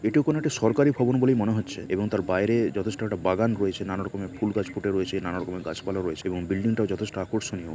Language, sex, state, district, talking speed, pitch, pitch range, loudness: Bengali, male, West Bengal, Purulia, 225 wpm, 100 Hz, 95-110 Hz, -26 LUFS